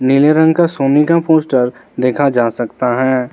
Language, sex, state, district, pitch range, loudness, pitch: Hindi, male, Arunachal Pradesh, Lower Dibang Valley, 125-155 Hz, -13 LUFS, 135 Hz